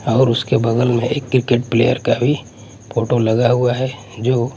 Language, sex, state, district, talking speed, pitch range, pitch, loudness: Hindi, male, Punjab, Kapurthala, 185 wpm, 115-130 Hz, 120 Hz, -17 LUFS